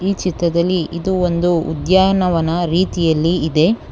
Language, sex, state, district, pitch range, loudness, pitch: Kannada, female, Karnataka, Bangalore, 165-185 Hz, -16 LUFS, 175 Hz